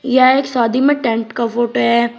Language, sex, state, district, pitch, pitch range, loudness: Hindi, male, Uttar Pradesh, Shamli, 240 Hz, 235-255 Hz, -15 LUFS